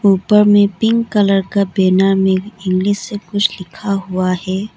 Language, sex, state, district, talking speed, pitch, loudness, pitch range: Hindi, female, Arunachal Pradesh, Lower Dibang Valley, 165 wpm, 195 Hz, -15 LUFS, 190-205 Hz